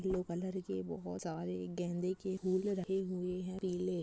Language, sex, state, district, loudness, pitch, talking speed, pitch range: Hindi, female, Uttar Pradesh, Hamirpur, -39 LUFS, 185 Hz, 195 wpm, 175-185 Hz